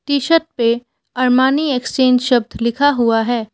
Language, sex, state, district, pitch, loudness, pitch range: Hindi, female, Assam, Kamrup Metropolitan, 250 Hz, -16 LUFS, 235-280 Hz